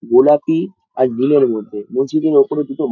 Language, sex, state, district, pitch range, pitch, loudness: Bengali, male, West Bengal, Dakshin Dinajpur, 130-155 Hz, 145 Hz, -15 LUFS